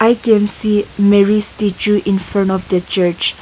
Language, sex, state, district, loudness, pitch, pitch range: English, female, Nagaland, Kohima, -14 LUFS, 205 Hz, 190-210 Hz